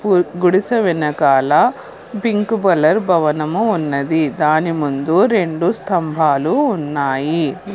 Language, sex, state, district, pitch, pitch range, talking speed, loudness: Telugu, female, Telangana, Hyderabad, 165 Hz, 150-200 Hz, 95 wpm, -16 LUFS